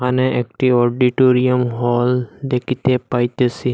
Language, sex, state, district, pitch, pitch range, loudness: Bengali, male, Assam, Hailakandi, 125 Hz, 120-130 Hz, -17 LUFS